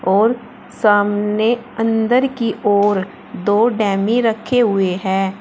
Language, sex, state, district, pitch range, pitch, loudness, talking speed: Hindi, female, Uttar Pradesh, Shamli, 200-235 Hz, 215 Hz, -16 LUFS, 110 wpm